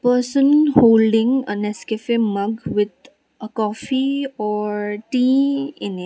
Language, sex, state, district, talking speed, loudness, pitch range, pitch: English, female, Sikkim, Gangtok, 130 wpm, -19 LUFS, 210-270 Hz, 230 Hz